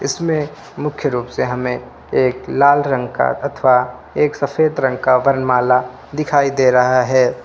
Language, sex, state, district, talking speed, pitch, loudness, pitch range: Hindi, male, Uttar Pradesh, Lucknow, 155 wpm, 130 Hz, -16 LUFS, 125-145 Hz